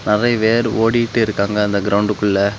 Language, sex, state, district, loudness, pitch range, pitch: Tamil, male, Tamil Nadu, Kanyakumari, -16 LUFS, 100-115 Hz, 105 Hz